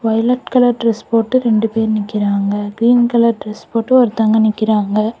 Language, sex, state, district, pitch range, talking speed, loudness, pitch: Tamil, female, Tamil Nadu, Kanyakumari, 215-235 Hz, 150 wpm, -15 LUFS, 225 Hz